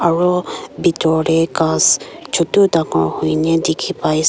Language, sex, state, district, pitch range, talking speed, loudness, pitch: Nagamese, female, Nagaland, Kohima, 155-170 Hz, 140 wpm, -16 LUFS, 160 Hz